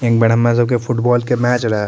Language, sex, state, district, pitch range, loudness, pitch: Maithili, male, Bihar, Madhepura, 115-120 Hz, -15 LUFS, 120 Hz